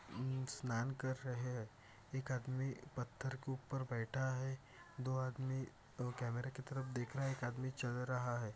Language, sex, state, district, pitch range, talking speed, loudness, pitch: Hindi, male, Maharashtra, Dhule, 120-130 Hz, 180 wpm, -44 LUFS, 130 Hz